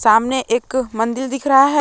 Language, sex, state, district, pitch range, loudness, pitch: Hindi, female, Jharkhand, Palamu, 230-270 Hz, -17 LUFS, 260 Hz